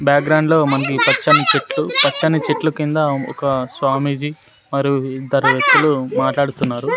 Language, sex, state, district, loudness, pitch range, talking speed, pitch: Telugu, male, Andhra Pradesh, Sri Satya Sai, -16 LUFS, 135-150 Hz, 120 wpm, 140 Hz